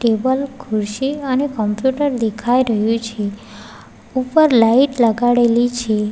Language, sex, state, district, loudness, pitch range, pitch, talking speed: Gujarati, female, Gujarat, Valsad, -17 LUFS, 220-265 Hz, 240 Hz, 110 wpm